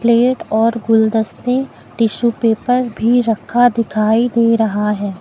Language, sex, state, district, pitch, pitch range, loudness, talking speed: Hindi, female, Uttar Pradesh, Lucknow, 230 Hz, 220-245 Hz, -15 LUFS, 125 wpm